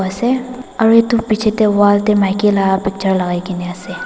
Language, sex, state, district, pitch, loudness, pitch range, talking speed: Nagamese, female, Nagaland, Dimapur, 205 Hz, -15 LUFS, 190-225 Hz, 205 wpm